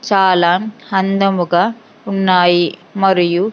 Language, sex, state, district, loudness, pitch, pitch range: Telugu, female, Andhra Pradesh, Sri Satya Sai, -14 LUFS, 190 Hz, 175-200 Hz